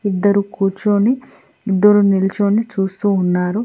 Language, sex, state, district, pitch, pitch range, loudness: Telugu, female, Telangana, Hyderabad, 200 Hz, 195-210 Hz, -16 LUFS